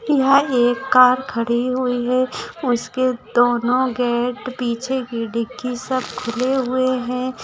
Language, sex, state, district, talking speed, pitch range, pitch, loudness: Hindi, female, Maharashtra, Dhule, 130 wpm, 240-255 Hz, 250 Hz, -19 LUFS